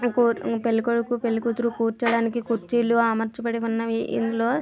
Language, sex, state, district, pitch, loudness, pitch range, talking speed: Telugu, female, Andhra Pradesh, Visakhapatnam, 230 Hz, -24 LUFS, 230-235 Hz, 105 wpm